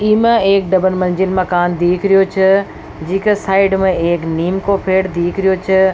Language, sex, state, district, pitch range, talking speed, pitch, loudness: Rajasthani, female, Rajasthan, Nagaur, 180-195 Hz, 200 wpm, 190 Hz, -14 LUFS